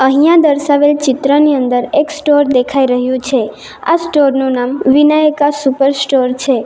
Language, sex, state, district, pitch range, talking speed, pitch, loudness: Gujarati, female, Gujarat, Valsad, 260-295 Hz, 155 wpm, 275 Hz, -12 LUFS